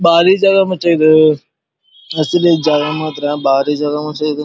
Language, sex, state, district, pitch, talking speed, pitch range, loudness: Kannada, male, Karnataka, Dharwad, 155 Hz, 150 wpm, 150-170 Hz, -13 LUFS